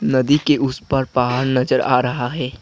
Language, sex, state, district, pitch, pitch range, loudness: Hindi, male, Assam, Kamrup Metropolitan, 130 Hz, 125-135 Hz, -18 LUFS